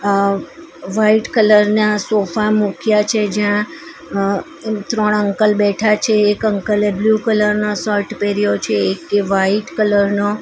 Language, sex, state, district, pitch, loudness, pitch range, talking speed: Gujarati, female, Gujarat, Valsad, 210 Hz, -16 LUFS, 200-215 Hz, 155 wpm